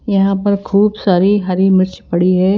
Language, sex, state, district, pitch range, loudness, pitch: Hindi, female, Himachal Pradesh, Shimla, 185-200 Hz, -14 LUFS, 195 Hz